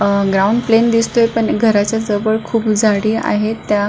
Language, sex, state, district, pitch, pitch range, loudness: Marathi, female, Maharashtra, Solapur, 220 Hz, 205-225 Hz, -15 LUFS